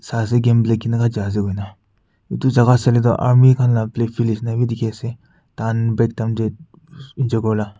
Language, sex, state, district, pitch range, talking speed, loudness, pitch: Nagamese, male, Nagaland, Kohima, 110-125 Hz, 190 wpm, -18 LUFS, 115 Hz